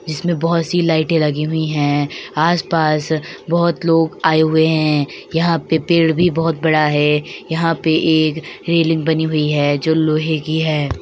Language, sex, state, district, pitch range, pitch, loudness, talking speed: Hindi, female, Uttar Pradesh, Hamirpur, 155-165 Hz, 160 Hz, -16 LUFS, 180 wpm